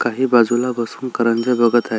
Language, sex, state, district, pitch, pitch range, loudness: Marathi, male, Maharashtra, Solapur, 120 Hz, 115-125 Hz, -17 LUFS